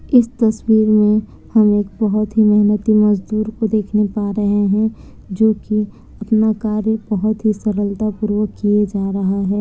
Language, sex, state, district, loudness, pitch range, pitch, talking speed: Hindi, female, Bihar, Kishanganj, -16 LUFS, 205-220 Hz, 210 Hz, 155 wpm